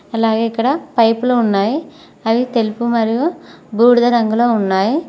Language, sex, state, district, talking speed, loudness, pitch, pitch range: Telugu, female, Telangana, Mahabubabad, 120 wpm, -15 LUFS, 230 Hz, 225-250 Hz